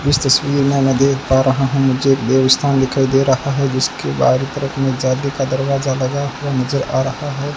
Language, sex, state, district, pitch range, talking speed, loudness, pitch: Hindi, male, Rajasthan, Bikaner, 130-140 Hz, 220 wpm, -16 LUFS, 135 Hz